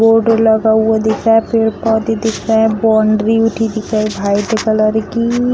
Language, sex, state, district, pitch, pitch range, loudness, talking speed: Hindi, female, Bihar, Samastipur, 220 Hz, 220-225 Hz, -13 LUFS, 185 wpm